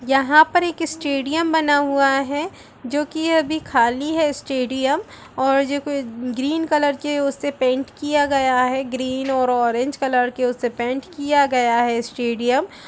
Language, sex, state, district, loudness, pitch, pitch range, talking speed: Hindi, female, Chhattisgarh, Raigarh, -20 LUFS, 275 Hz, 255-295 Hz, 170 wpm